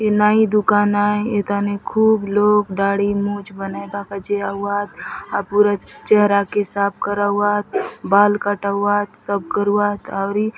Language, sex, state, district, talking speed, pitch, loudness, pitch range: Halbi, female, Chhattisgarh, Bastar, 135 wpm, 205 Hz, -18 LUFS, 200-210 Hz